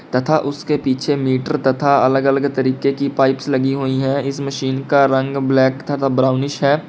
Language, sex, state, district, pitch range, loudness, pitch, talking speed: Hindi, male, Uttar Pradesh, Lalitpur, 130-140 Hz, -17 LUFS, 135 Hz, 185 wpm